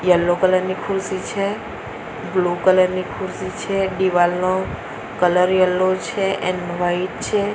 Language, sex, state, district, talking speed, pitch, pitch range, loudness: Gujarati, female, Gujarat, Valsad, 135 wpm, 185 Hz, 180-195 Hz, -20 LUFS